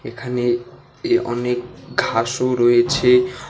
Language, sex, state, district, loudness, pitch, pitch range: Bengali, male, West Bengal, Alipurduar, -19 LUFS, 125 Hz, 120-125 Hz